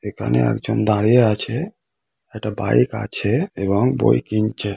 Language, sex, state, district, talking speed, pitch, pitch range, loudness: Bengali, male, West Bengal, Kolkata, 125 wpm, 105 Hz, 95-120 Hz, -19 LUFS